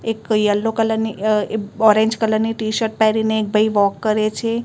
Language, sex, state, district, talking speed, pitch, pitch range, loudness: Gujarati, female, Gujarat, Gandhinagar, 195 wpm, 220 Hz, 215-220 Hz, -18 LUFS